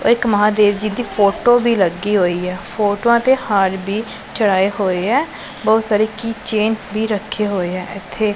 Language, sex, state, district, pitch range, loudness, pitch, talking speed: Punjabi, female, Punjab, Pathankot, 195-220 Hz, -17 LUFS, 210 Hz, 185 wpm